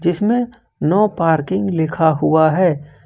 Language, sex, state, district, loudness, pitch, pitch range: Hindi, male, Jharkhand, Ranchi, -16 LUFS, 170 Hz, 160-195 Hz